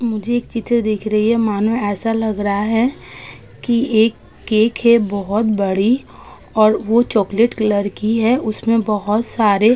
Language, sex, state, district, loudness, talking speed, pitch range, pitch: Hindi, female, Uttar Pradesh, Budaun, -17 LUFS, 165 wpm, 210-230 Hz, 220 Hz